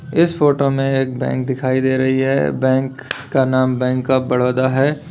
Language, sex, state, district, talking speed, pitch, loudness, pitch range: Hindi, male, Uttar Pradesh, Lalitpur, 190 wpm, 130 Hz, -17 LUFS, 130-135 Hz